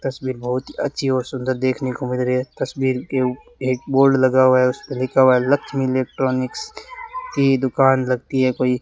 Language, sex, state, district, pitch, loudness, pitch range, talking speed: Hindi, male, Rajasthan, Bikaner, 130 Hz, -19 LUFS, 130-135 Hz, 205 wpm